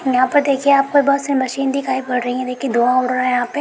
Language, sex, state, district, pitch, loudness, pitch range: Hindi, female, Jharkhand, Jamtara, 260 Hz, -17 LUFS, 255-275 Hz